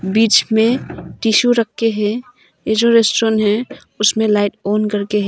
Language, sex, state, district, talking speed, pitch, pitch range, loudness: Hindi, female, Arunachal Pradesh, Papum Pare, 145 wpm, 220 Hz, 210-230 Hz, -15 LUFS